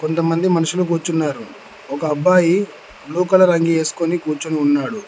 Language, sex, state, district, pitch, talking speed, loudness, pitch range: Telugu, male, Telangana, Mahabubabad, 165 Hz, 130 wpm, -17 LUFS, 155-180 Hz